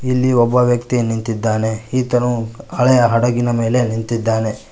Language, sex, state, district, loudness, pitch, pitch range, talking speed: Kannada, male, Karnataka, Koppal, -16 LUFS, 120 Hz, 115-125 Hz, 115 wpm